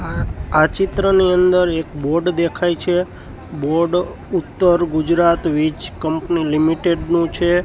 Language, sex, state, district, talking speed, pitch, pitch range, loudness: Gujarati, male, Gujarat, Gandhinagar, 125 wpm, 170 Hz, 155-180 Hz, -17 LUFS